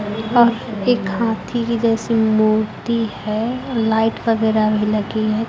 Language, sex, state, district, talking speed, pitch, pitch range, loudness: Hindi, female, Chhattisgarh, Raipur, 130 wpm, 220 Hz, 215-230 Hz, -18 LUFS